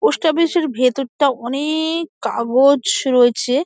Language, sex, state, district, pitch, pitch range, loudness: Bengali, female, West Bengal, Dakshin Dinajpur, 280 Hz, 255-325 Hz, -17 LUFS